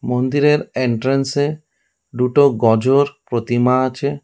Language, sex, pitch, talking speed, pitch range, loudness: Bengali, male, 130 Hz, 100 wpm, 125-145 Hz, -17 LUFS